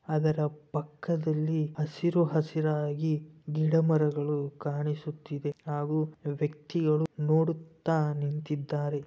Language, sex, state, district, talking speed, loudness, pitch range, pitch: Kannada, male, Karnataka, Bellary, 80 wpm, -30 LUFS, 150-155 Hz, 150 Hz